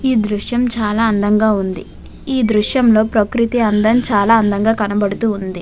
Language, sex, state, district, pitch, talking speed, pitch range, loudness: Telugu, female, Andhra Pradesh, Visakhapatnam, 215 Hz, 140 wpm, 205-230 Hz, -15 LUFS